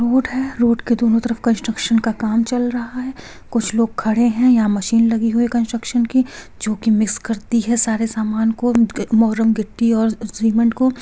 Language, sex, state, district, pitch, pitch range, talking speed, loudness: Hindi, female, Bihar, Gopalganj, 230 Hz, 225-240 Hz, 190 wpm, -18 LUFS